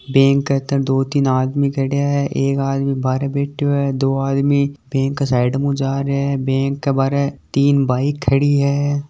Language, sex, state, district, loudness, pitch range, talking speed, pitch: Marwari, male, Rajasthan, Nagaur, -18 LUFS, 135-140 Hz, 190 wpm, 140 Hz